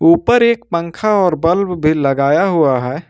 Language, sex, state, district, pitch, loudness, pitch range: Hindi, male, Jharkhand, Ranchi, 175 Hz, -14 LUFS, 155-215 Hz